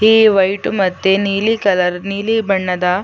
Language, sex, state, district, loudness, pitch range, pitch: Kannada, female, Karnataka, Chamarajanagar, -15 LUFS, 185-210 Hz, 195 Hz